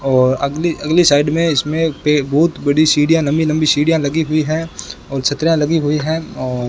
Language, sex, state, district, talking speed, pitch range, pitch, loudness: Hindi, male, Rajasthan, Bikaner, 205 wpm, 145-160 Hz, 155 Hz, -15 LUFS